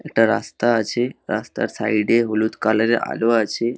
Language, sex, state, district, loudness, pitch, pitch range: Bengali, male, West Bengal, Dakshin Dinajpur, -20 LUFS, 115 Hz, 110-115 Hz